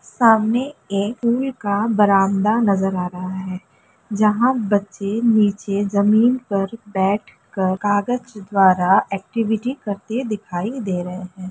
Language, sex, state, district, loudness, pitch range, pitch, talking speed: Hindi, female, Bihar, Jamui, -19 LUFS, 195-225 Hz, 205 Hz, 120 wpm